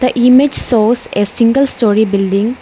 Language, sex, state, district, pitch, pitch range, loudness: English, female, Arunachal Pradesh, Lower Dibang Valley, 230 Hz, 210-255 Hz, -11 LUFS